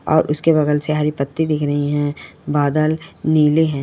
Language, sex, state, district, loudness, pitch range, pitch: Hindi, female, Bihar, Purnia, -18 LUFS, 145-155 Hz, 150 Hz